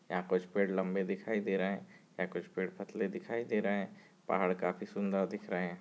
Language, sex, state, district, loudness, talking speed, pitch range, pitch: Hindi, male, Chhattisgarh, Rajnandgaon, -36 LUFS, 225 wpm, 90-100 Hz, 95 Hz